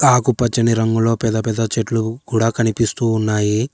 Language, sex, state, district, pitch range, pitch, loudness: Telugu, male, Telangana, Hyderabad, 110-115 Hz, 115 Hz, -18 LUFS